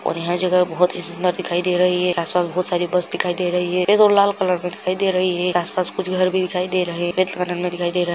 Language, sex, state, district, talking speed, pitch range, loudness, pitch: Hindi, male, Chhattisgarh, Balrampur, 295 wpm, 175-185 Hz, -19 LUFS, 180 Hz